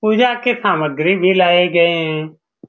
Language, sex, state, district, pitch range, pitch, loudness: Hindi, male, Bihar, Saran, 160-215 Hz, 175 Hz, -15 LUFS